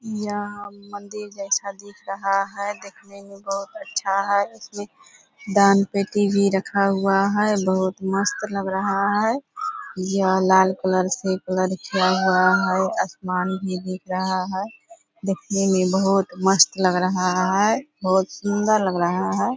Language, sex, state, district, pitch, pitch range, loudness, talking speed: Hindi, female, Bihar, Purnia, 195 Hz, 190-205 Hz, -21 LUFS, 145 wpm